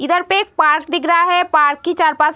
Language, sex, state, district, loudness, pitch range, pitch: Hindi, female, Uttar Pradesh, Deoria, -14 LUFS, 305-355 Hz, 340 Hz